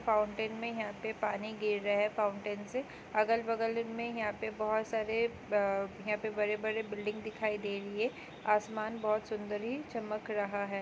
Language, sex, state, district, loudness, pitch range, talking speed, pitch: Hindi, female, Andhra Pradesh, Krishna, -35 LUFS, 210-220 Hz, 170 wpm, 215 Hz